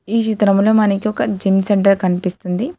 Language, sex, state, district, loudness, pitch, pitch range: Telugu, female, Telangana, Hyderabad, -16 LUFS, 200 Hz, 195-215 Hz